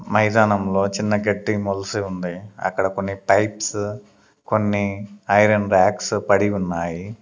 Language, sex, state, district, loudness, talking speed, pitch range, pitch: Telugu, male, Andhra Pradesh, Sri Satya Sai, -20 LUFS, 110 wpm, 95-105 Hz, 100 Hz